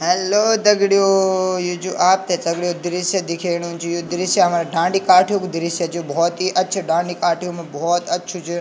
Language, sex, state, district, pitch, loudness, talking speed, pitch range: Garhwali, male, Uttarakhand, Tehri Garhwal, 175 Hz, -18 LUFS, 190 wpm, 170-185 Hz